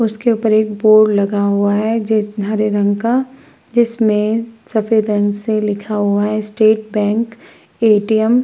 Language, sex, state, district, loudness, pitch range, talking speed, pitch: Hindi, female, Uttar Pradesh, Hamirpur, -15 LUFS, 210-225 Hz, 155 wpm, 215 Hz